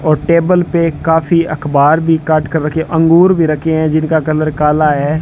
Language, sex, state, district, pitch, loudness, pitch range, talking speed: Hindi, male, Rajasthan, Bikaner, 160 Hz, -12 LUFS, 155-165 Hz, 195 wpm